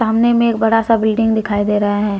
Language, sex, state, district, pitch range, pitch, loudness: Hindi, female, Jharkhand, Deoghar, 210-225 Hz, 220 Hz, -15 LUFS